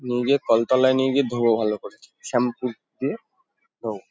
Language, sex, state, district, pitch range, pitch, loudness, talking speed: Bengali, male, West Bengal, Kolkata, 120-140 Hz, 130 Hz, -22 LUFS, 160 wpm